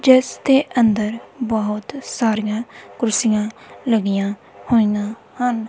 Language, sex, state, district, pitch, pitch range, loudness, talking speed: Punjabi, female, Punjab, Kapurthala, 225 Hz, 215-245 Hz, -19 LUFS, 95 wpm